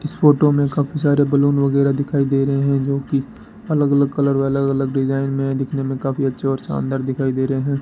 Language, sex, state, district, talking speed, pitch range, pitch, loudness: Hindi, male, Rajasthan, Bikaner, 240 wpm, 135-140 Hz, 140 Hz, -18 LUFS